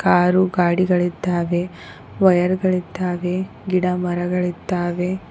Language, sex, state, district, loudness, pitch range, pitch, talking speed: Kannada, female, Karnataka, Koppal, -20 LUFS, 175-185 Hz, 180 Hz, 70 wpm